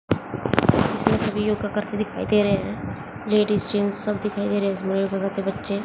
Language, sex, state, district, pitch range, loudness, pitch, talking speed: Hindi, female, Haryana, Jhajjar, 195-210 Hz, -23 LUFS, 205 Hz, 185 wpm